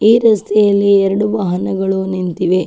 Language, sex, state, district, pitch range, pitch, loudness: Kannada, female, Karnataka, Chamarajanagar, 185-210 Hz, 195 Hz, -14 LUFS